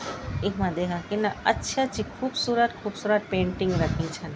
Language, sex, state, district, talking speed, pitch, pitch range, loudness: Garhwali, female, Uttarakhand, Tehri Garhwal, 110 wpm, 200 Hz, 175-215 Hz, -27 LUFS